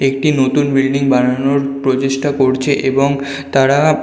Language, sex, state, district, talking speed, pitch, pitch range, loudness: Bengali, male, West Bengal, North 24 Parganas, 120 wpm, 135 Hz, 135-140 Hz, -14 LUFS